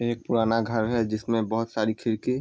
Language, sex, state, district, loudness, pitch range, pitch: Hindi, male, Bihar, Vaishali, -26 LUFS, 110-115 Hz, 115 Hz